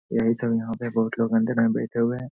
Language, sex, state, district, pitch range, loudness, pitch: Hindi, male, Bihar, Saharsa, 115-120 Hz, -24 LUFS, 115 Hz